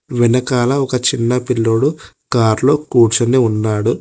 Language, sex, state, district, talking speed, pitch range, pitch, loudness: Telugu, male, Telangana, Hyderabad, 105 wpm, 115-130 Hz, 125 Hz, -15 LUFS